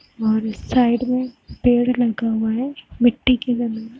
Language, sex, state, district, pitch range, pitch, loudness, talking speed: Hindi, female, Uttar Pradesh, Hamirpur, 225-250 Hz, 240 Hz, -20 LUFS, 210 wpm